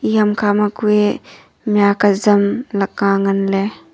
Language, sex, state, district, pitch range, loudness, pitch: Wancho, female, Arunachal Pradesh, Longding, 200-210 Hz, -16 LUFS, 205 Hz